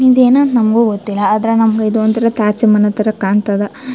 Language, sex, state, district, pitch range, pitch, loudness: Kannada, female, Karnataka, Chamarajanagar, 210-235 Hz, 220 Hz, -13 LUFS